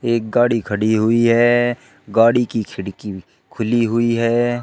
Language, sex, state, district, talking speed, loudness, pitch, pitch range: Hindi, male, Uttar Pradesh, Shamli, 140 wpm, -17 LUFS, 115 Hz, 110-120 Hz